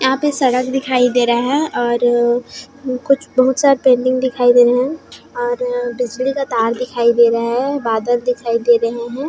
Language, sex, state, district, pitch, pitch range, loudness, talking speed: Chhattisgarhi, female, Chhattisgarh, Raigarh, 250 Hz, 240-270 Hz, -16 LUFS, 195 wpm